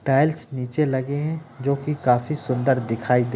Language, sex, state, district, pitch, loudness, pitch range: Hindi, male, Bihar, East Champaran, 135 Hz, -23 LUFS, 125-150 Hz